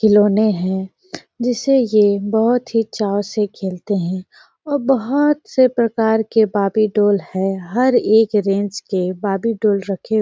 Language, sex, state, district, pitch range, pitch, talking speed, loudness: Hindi, female, Chhattisgarh, Sarguja, 200-235 Hz, 215 Hz, 140 wpm, -17 LUFS